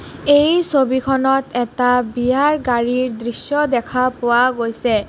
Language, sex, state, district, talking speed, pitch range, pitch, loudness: Assamese, female, Assam, Kamrup Metropolitan, 105 wpm, 240-270 Hz, 250 Hz, -17 LUFS